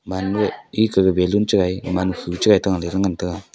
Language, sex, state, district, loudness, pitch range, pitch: Wancho, male, Arunachal Pradesh, Longding, -19 LUFS, 90-105 Hz, 95 Hz